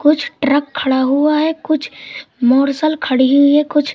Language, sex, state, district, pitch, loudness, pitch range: Hindi, male, Madhya Pradesh, Katni, 295 Hz, -14 LUFS, 275-305 Hz